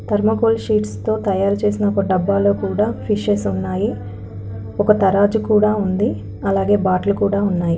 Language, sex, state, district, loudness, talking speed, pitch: Telugu, female, Telangana, Karimnagar, -18 LUFS, 130 wpm, 200 Hz